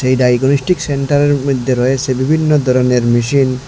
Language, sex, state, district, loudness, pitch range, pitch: Bengali, male, Assam, Hailakandi, -13 LUFS, 130-140 Hz, 130 Hz